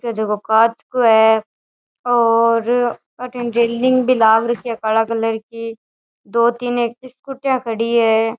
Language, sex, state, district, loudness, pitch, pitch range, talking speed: Rajasthani, female, Rajasthan, Churu, -16 LUFS, 230 Hz, 225-245 Hz, 135 wpm